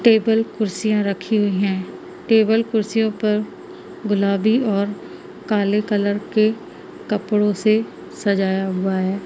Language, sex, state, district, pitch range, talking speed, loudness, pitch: Hindi, female, Madhya Pradesh, Umaria, 200-220 Hz, 115 wpm, -20 LUFS, 210 Hz